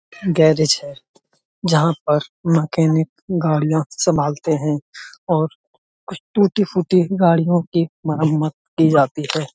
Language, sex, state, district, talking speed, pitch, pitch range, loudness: Hindi, male, Uttar Pradesh, Budaun, 115 wpm, 160 Hz, 155-175 Hz, -18 LUFS